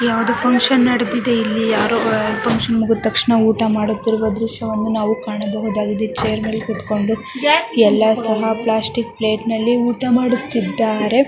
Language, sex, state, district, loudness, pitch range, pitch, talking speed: Kannada, male, Karnataka, Mysore, -17 LUFS, 220-235 Hz, 225 Hz, 115 wpm